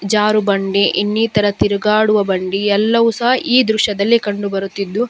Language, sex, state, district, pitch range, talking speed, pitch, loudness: Kannada, female, Karnataka, Dakshina Kannada, 200-220 Hz, 130 wpm, 210 Hz, -15 LUFS